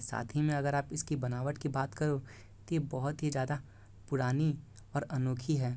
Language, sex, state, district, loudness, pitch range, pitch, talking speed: Hindi, male, Bihar, East Champaran, -35 LUFS, 125-150 Hz, 135 Hz, 195 wpm